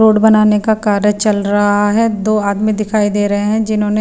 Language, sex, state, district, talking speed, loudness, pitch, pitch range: Hindi, female, Himachal Pradesh, Shimla, 210 wpm, -13 LUFS, 210 Hz, 205-215 Hz